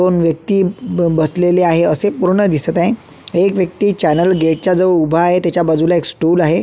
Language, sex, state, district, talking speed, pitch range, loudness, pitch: Marathi, male, Maharashtra, Solapur, 200 wpm, 165-185 Hz, -14 LUFS, 175 Hz